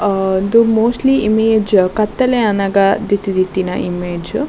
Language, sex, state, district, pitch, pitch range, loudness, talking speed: Tulu, female, Karnataka, Dakshina Kannada, 200 Hz, 190-225 Hz, -14 LUFS, 135 wpm